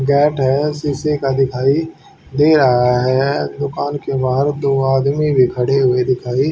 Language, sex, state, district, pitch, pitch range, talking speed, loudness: Hindi, male, Haryana, Jhajjar, 135 Hz, 130-145 Hz, 155 wpm, -16 LUFS